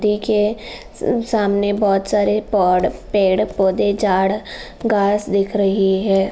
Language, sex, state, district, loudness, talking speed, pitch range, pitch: Hindi, female, Uttar Pradesh, Jalaun, -18 LUFS, 125 wpm, 195-210 Hz, 200 Hz